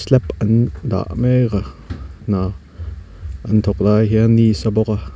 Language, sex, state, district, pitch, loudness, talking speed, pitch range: Mizo, male, Mizoram, Aizawl, 105 Hz, -17 LUFS, 165 wpm, 85-110 Hz